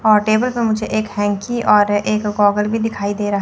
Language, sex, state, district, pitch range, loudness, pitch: Hindi, female, Chandigarh, Chandigarh, 205-215 Hz, -17 LUFS, 210 Hz